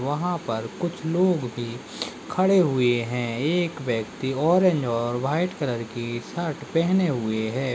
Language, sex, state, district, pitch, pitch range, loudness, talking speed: Hindi, male, Chhattisgarh, Bilaspur, 135 Hz, 120-175 Hz, -25 LUFS, 155 wpm